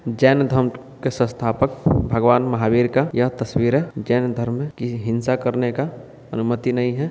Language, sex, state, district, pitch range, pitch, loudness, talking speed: Hindi, male, Bihar, Purnia, 120-130 Hz, 125 Hz, -20 LUFS, 160 wpm